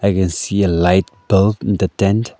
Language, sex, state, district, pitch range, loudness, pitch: English, male, Arunachal Pradesh, Lower Dibang Valley, 95-100 Hz, -16 LUFS, 100 Hz